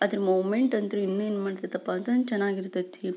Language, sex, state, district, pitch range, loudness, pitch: Kannada, female, Karnataka, Belgaum, 190-210 Hz, -28 LUFS, 200 Hz